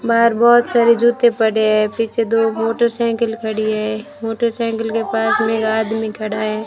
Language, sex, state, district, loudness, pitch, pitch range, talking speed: Hindi, female, Rajasthan, Jaisalmer, -17 LUFS, 225 Hz, 220-235 Hz, 170 wpm